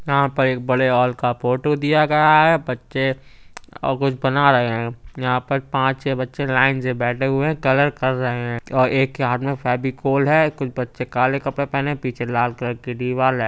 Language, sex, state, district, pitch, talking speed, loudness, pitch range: Hindi, male, Uttar Pradesh, Budaun, 130 Hz, 220 wpm, -19 LUFS, 125-140 Hz